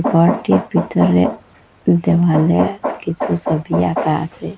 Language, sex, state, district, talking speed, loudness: Bengali, female, Assam, Hailakandi, 90 wpm, -16 LUFS